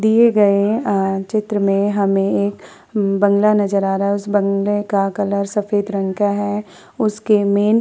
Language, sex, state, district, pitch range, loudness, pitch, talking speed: Hindi, female, Uttar Pradesh, Hamirpur, 200-210 Hz, -17 LUFS, 205 Hz, 175 wpm